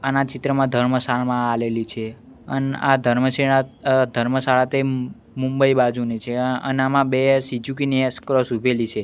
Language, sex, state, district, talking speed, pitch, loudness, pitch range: Gujarati, male, Gujarat, Gandhinagar, 160 wpm, 130 Hz, -20 LUFS, 120-135 Hz